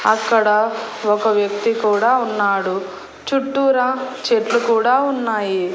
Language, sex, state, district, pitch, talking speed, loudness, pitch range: Telugu, female, Andhra Pradesh, Annamaya, 225 Hz, 95 wpm, -17 LUFS, 210-250 Hz